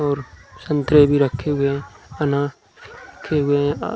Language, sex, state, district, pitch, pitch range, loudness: Hindi, male, Uttar Pradesh, Muzaffarnagar, 145 Hz, 135-145 Hz, -19 LUFS